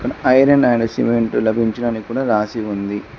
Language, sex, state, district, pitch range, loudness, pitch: Telugu, male, Telangana, Mahabubabad, 110-120 Hz, -17 LUFS, 115 Hz